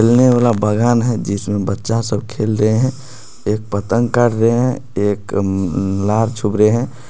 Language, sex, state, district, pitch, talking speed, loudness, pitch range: Hindi, male, Bihar, Madhepura, 110 Hz, 160 wpm, -16 LUFS, 105-120 Hz